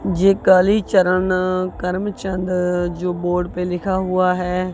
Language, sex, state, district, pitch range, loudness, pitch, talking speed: Hindi, female, Punjab, Kapurthala, 180-190 Hz, -18 LUFS, 185 Hz, 115 wpm